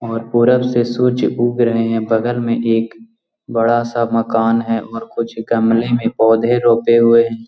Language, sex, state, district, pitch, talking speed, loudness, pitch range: Magahi, male, Bihar, Jahanabad, 115 Hz, 175 wpm, -15 LUFS, 115-120 Hz